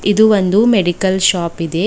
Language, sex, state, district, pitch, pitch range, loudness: Kannada, female, Karnataka, Bidar, 190 Hz, 175-210 Hz, -13 LUFS